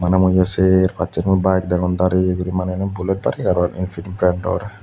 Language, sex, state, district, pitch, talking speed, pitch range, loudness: Chakma, male, Tripura, Dhalai, 95 Hz, 200 wpm, 90-95 Hz, -18 LUFS